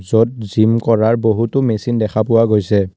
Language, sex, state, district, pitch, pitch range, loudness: Assamese, male, Assam, Kamrup Metropolitan, 110 Hz, 110-115 Hz, -15 LUFS